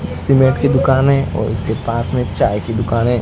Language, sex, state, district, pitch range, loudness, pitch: Hindi, male, Gujarat, Gandhinagar, 115-135 Hz, -16 LUFS, 130 Hz